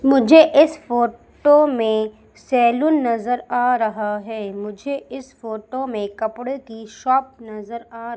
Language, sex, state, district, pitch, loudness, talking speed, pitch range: Hindi, female, Madhya Pradesh, Umaria, 235 Hz, -18 LUFS, 130 wpm, 220-270 Hz